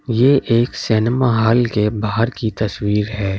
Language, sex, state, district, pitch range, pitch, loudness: Hindi, male, Delhi, New Delhi, 105-120 Hz, 110 Hz, -17 LUFS